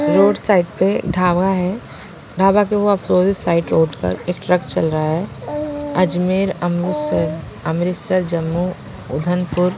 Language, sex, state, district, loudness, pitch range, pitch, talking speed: Hindi, female, Punjab, Pathankot, -18 LUFS, 160-185 Hz, 180 Hz, 135 wpm